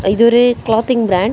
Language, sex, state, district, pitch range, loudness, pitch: Tamil, female, Tamil Nadu, Kanyakumari, 210-240 Hz, -13 LUFS, 230 Hz